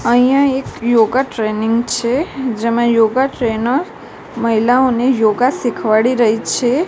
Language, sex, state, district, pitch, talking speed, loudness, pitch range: Gujarati, female, Gujarat, Gandhinagar, 240 Hz, 115 wpm, -15 LUFS, 225-260 Hz